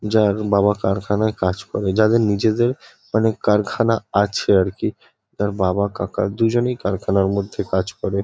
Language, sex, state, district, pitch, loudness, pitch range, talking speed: Bengali, male, West Bengal, Kolkata, 100 Hz, -20 LUFS, 100-110 Hz, 140 wpm